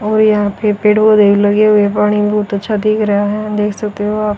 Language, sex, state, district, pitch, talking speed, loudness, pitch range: Hindi, female, Haryana, Rohtak, 210 Hz, 245 wpm, -13 LUFS, 205-215 Hz